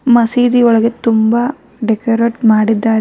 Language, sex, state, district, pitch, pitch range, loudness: Kannada, female, Karnataka, Bangalore, 230 Hz, 220-240 Hz, -13 LUFS